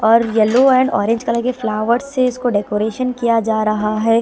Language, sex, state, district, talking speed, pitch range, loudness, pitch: Hindi, female, Delhi, New Delhi, 200 wpm, 215-250 Hz, -16 LUFS, 230 Hz